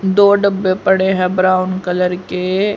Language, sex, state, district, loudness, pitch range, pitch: Hindi, female, Haryana, Rohtak, -15 LUFS, 185-195 Hz, 185 Hz